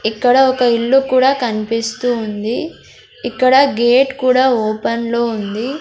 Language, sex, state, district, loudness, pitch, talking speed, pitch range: Telugu, female, Andhra Pradesh, Sri Satya Sai, -15 LUFS, 245 Hz, 125 wpm, 230-260 Hz